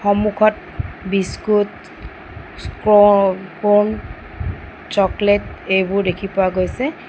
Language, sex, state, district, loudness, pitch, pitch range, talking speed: Assamese, female, Assam, Sonitpur, -17 LUFS, 200 Hz, 185-205 Hz, 70 wpm